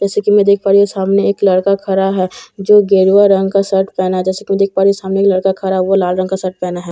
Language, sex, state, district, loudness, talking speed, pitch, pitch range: Hindi, female, Bihar, Katihar, -13 LUFS, 340 wpm, 195 Hz, 190-200 Hz